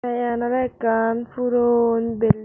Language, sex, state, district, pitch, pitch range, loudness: Chakma, female, Tripura, Dhalai, 235 Hz, 230-245 Hz, -21 LUFS